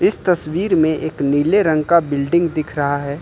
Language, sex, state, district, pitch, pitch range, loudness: Hindi, male, Uttar Pradesh, Lucknow, 155 Hz, 145-170 Hz, -17 LUFS